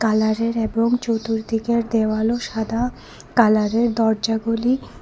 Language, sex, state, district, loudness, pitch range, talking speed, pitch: Bengali, female, Tripura, West Tripura, -20 LUFS, 220-235 Hz, 95 wpm, 225 Hz